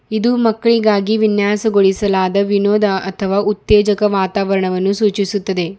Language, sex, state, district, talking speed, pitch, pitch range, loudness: Kannada, female, Karnataka, Bidar, 85 wpm, 205 Hz, 195-210 Hz, -15 LUFS